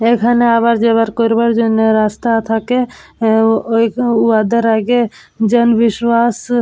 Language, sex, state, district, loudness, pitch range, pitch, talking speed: Bengali, female, West Bengal, Purulia, -13 LUFS, 225-235 Hz, 230 Hz, 100 wpm